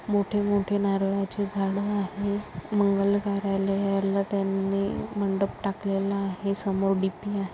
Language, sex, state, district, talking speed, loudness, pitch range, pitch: Marathi, female, Maharashtra, Sindhudurg, 110 wpm, -27 LUFS, 195-205 Hz, 200 Hz